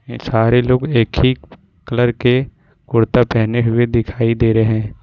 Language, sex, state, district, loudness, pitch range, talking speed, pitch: Hindi, male, Jharkhand, Ranchi, -16 LUFS, 115-125 Hz, 155 wpm, 120 Hz